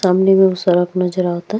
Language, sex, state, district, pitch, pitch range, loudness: Bhojpuri, female, Uttar Pradesh, Deoria, 185 Hz, 180-190 Hz, -15 LUFS